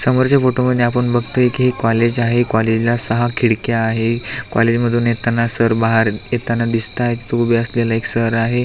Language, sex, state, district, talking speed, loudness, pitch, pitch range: Marathi, male, Maharashtra, Aurangabad, 175 wpm, -15 LUFS, 120 Hz, 115-120 Hz